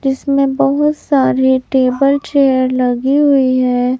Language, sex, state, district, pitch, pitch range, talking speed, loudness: Hindi, male, Chhattisgarh, Raipur, 270 Hz, 255-280 Hz, 120 wpm, -13 LUFS